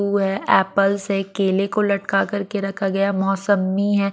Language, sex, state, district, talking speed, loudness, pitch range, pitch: Hindi, female, Maharashtra, Mumbai Suburban, 175 wpm, -20 LUFS, 195-200 Hz, 195 Hz